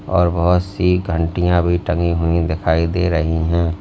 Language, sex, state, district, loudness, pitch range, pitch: Hindi, male, Uttar Pradesh, Lalitpur, -17 LUFS, 85-90 Hz, 85 Hz